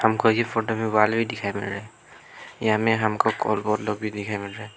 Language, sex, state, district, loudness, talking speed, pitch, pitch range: Hindi, male, Arunachal Pradesh, Lower Dibang Valley, -24 LUFS, 240 wpm, 110 Hz, 105-110 Hz